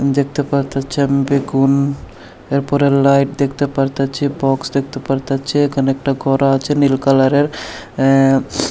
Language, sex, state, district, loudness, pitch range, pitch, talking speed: Bengali, male, Tripura, Unakoti, -16 LUFS, 135-140 Hz, 140 Hz, 130 wpm